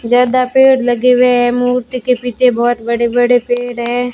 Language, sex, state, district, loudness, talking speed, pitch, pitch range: Hindi, female, Rajasthan, Bikaner, -13 LUFS, 190 wpm, 245 Hz, 245-250 Hz